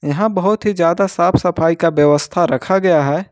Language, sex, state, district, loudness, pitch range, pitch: Hindi, male, Jharkhand, Ranchi, -15 LUFS, 145-190 Hz, 170 Hz